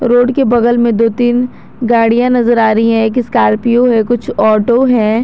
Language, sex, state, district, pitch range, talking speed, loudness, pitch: Hindi, female, Jharkhand, Garhwa, 225-245 Hz, 195 wpm, -11 LUFS, 235 Hz